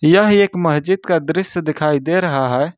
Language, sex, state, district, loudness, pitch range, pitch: Hindi, male, Jharkhand, Ranchi, -16 LUFS, 150-190 Hz, 170 Hz